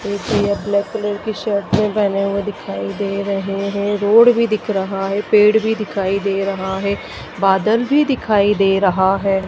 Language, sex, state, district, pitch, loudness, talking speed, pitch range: Hindi, female, Madhya Pradesh, Dhar, 200 Hz, -17 LUFS, 190 wpm, 195-210 Hz